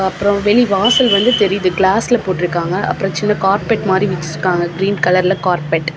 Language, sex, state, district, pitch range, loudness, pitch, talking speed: Tamil, female, Tamil Nadu, Kanyakumari, 180-205 Hz, -14 LUFS, 190 Hz, 150 wpm